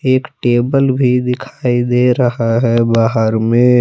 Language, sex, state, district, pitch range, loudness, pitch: Hindi, male, Jharkhand, Palamu, 115-125 Hz, -14 LUFS, 125 Hz